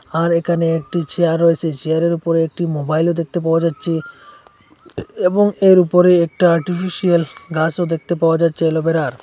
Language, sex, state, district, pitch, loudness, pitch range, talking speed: Bengali, male, Assam, Hailakandi, 170 Hz, -16 LUFS, 160-175 Hz, 150 wpm